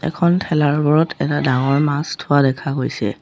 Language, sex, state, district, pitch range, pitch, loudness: Assamese, female, Assam, Sonitpur, 135-155 Hz, 145 Hz, -17 LUFS